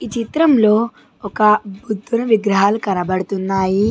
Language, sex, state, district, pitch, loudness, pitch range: Telugu, female, Telangana, Nalgonda, 210 Hz, -16 LUFS, 195-230 Hz